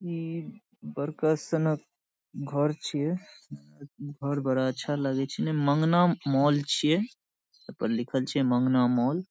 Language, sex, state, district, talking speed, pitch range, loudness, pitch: Maithili, male, Bihar, Saharsa, 140 wpm, 135-160 Hz, -28 LUFS, 145 Hz